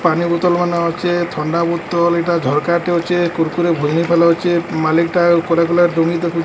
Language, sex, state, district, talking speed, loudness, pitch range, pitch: Odia, male, Odisha, Sambalpur, 120 wpm, -15 LUFS, 165-175 Hz, 170 Hz